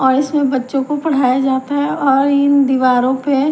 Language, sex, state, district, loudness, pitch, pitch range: Hindi, female, Haryana, Jhajjar, -15 LUFS, 275 Hz, 265-285 Hz